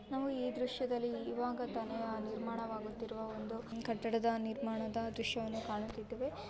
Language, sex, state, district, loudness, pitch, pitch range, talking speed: Kannada, female, Karnataka, Bijapur, -40 LUFS, 230 Hz, 225-240 Hz, 100 wpm